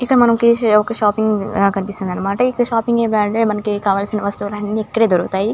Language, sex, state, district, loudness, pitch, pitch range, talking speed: Telugu, female, Andhra Pradesh, Chittoor, -16 LUFS, 210 Hz, 200-230 Hz, 175 wpm